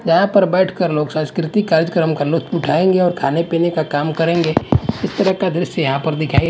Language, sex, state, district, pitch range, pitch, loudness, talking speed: Hindi, male, Punjab, Pathankot, 155-180 Hz, 165 Hz, -17 LUFS, 205 wpm